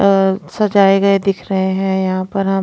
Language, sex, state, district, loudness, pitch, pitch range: Hindi, female, Punjab, Pathankot, -15 LUFS, 195 Hz, 190-195 Hz